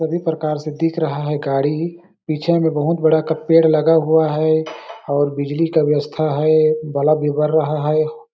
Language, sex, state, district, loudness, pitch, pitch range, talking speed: Hindi, male, Chhattisgarh, Balrampur, -17 LUFS, 155 Hz, 150-160 Hz, 185 wpm